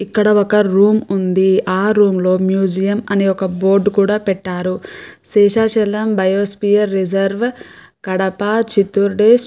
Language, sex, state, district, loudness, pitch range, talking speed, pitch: Telugu, female, Andhra Pradesh, Chittoor, -15 LUFS, 190-210 Hz, 125 wpm, 200 Hz